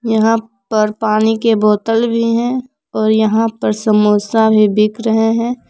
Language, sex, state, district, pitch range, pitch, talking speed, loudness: Hindi, female, Jharkhand, Palamu, 215-230 Hz, 220 Hz, 160 wpm, -14 LUFS